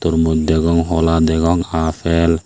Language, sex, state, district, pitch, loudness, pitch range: Chakma, male, Tripura, Unakoti, 80 Hz, -16 LUFS, 80-85 Hz